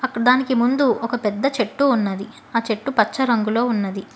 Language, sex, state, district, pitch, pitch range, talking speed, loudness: Telugu, female, Telangana, Hyderabad, 235 Hz, 215-260 Hz, 160 wpm, -20 LUFS